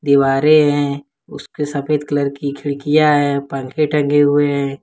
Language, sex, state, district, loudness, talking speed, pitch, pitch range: Hindi, male, Jharkhand, Ranchi, -16 LUFS, 150 wpm, 145 Hz, 140-150 Hz